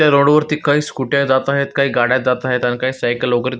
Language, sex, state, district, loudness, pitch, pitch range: Marathi, male, Maharashtra, Solapur, -16 LUFS, 130 Hz, 125-140 Hz